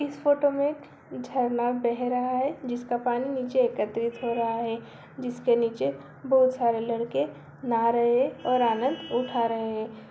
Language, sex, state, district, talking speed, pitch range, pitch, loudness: Hindi, female, Bihar, Begusarai, 160 wpm, 230-255 Hz, 245 Hz, -27 LUFS